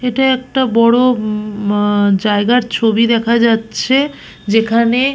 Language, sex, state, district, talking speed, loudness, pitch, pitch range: Bengali, female, West Bengal, Purulia, 115 wpm, -13 LUFS, 230 Hz, 215-250 Hz